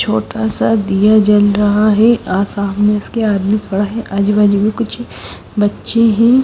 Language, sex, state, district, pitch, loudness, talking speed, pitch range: Hindi, female, Odisha, Sambalpur, 210 Hz, -13 LUFS, 170 wpm, 200-215 Hz